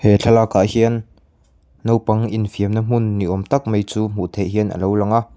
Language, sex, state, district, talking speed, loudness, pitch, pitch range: Mizo, male, Mizoram, Aizawl, 210 wpm, -18 LUFS, 105 Hz, 95-115 Hz